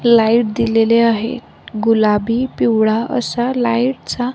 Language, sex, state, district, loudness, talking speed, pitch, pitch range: Marathi, female, Maharashtra, Gondia, -16 LUFS, 110 wpm, 230 Hz, 225-245 Hz